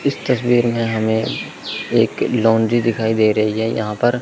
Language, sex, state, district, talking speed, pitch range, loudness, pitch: Hindi, male, Chandigarh, Chandigarh, 170 wpm, 110-120 Hz, -18 LUFS, 115 Hz